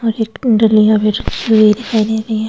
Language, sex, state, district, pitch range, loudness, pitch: Hindi, female, Goa, North and South Goa, 215-225 Hz, -13 LUFS, 220 Hz